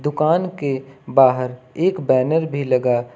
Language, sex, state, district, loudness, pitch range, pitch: Hindi, male, Uttar Pradesh, Lucknow, -19 LUFS, 125-155 Hz, 135 Hz